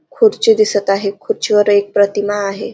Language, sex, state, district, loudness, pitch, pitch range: Marathi, female, Maharashtra, Dhule, -14 LUFS, 205 Hz, 200-215 Hz